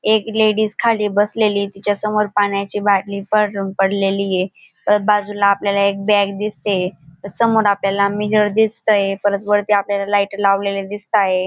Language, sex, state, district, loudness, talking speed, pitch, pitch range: Marathi, female, Maharashtra, Dhule, -17 LUFS, 140 wpm, 205 Hz, 200-210 Hz